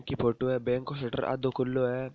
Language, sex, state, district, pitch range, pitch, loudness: Marwari, male, Rajasthan, Nagaur, 125-130 Hz, 130 Hz, -30 LUFS